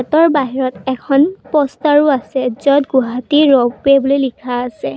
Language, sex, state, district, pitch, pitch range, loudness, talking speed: Assamese, female, Assam, Kamrup Metropolitan, 270 Hz, 255-290 Hz, -14 LUFS, 135 wpm